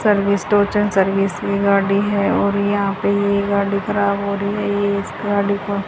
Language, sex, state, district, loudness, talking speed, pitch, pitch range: Hindi, female, Haryana, Charkhi Dadri, -18 LUFS, 195 wpm, 200 Hz, 200-205 Hz